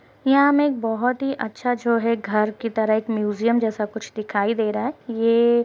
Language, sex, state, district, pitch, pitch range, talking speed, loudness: Hindi, female, Uttar Pradesh, Ghazipur, 230 Hz, 215-245 Hz, 225 wpm, -21 LUFS